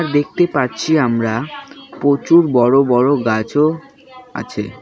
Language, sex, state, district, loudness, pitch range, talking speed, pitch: Bengali, male, West Bengal, Alipurduar, -15 LUFS, 125-170 Hz, 100 wpm, 145 Hz